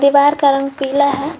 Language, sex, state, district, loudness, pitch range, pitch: Hindi, female, Jharkhand, Garhwa, -14 LUFS, 275-285 Hz, 280 Hz